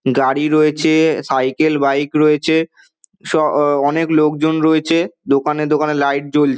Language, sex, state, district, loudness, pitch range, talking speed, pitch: Bengali, male, West Bengal, Dakshin Dinajpur, -15 LUFS, 145-160 Hz, 125 wpm, 150 Hz